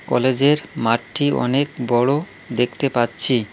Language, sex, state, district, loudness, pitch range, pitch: Bengali, male, West Bengal, Cooch Behar, -19 LUFS, 120-145 Hz, 125 Hz